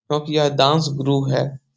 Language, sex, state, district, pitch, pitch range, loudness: Hindi, male, Bihar, Supaul, 140 Hz, 135-150 Hz, -19 LUFS